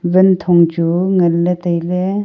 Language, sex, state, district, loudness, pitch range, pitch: Wancho, female, Arunachal Pradesh, Longding, -14 LUFS, 170-185 Hz, 180 Hz